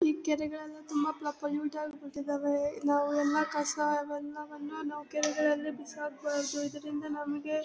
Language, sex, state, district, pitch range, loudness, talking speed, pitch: Kannada, female, Karnataka, Bellary, 290-305 Hz, -33 LUFS, 85 wpm, 295 Hz